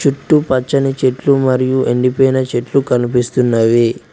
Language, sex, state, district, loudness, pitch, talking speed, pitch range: Telugu, male, Telangana, Mahabubabad, -14 LUFS, 130 Hz, 100 wpm, 125-135 Hz